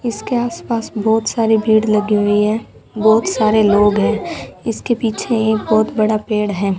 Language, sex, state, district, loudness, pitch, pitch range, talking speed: Hindi, female, Rajasthan, Bikaner, -16 LUFS, 220 Hz, 210-225 Hz, 175 wpm